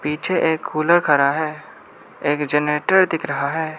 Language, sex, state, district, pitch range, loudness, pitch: Hindi, male, Arunachal Pradesh, Lower Dibang Valley, 145-160 Hz, -19 LUFS, 150 Hz